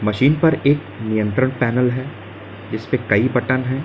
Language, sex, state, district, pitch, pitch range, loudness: Hindi, male, Uttar Pradesh, Lalitpur, 125 Hz, 110-130 Hz, -19 LUFS